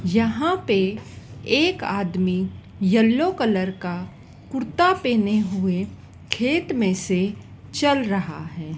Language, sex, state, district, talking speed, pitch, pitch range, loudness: Hindi, female, Madhya Pradesh, Dhar, 110 wpm, 205 Hz, 185-260 Hz, -22 LUFS